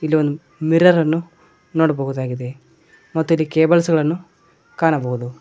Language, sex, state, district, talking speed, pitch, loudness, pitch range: Kannada, male, Karnataka, Koppal, 110 wpm, 160 Hz, -18 LUFS, 140-165 Hz